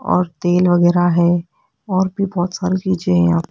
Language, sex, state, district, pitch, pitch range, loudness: Hindi, female, Rajasthan, Jaipur, 175 Hz, 175-185 Hz, -17 LUFS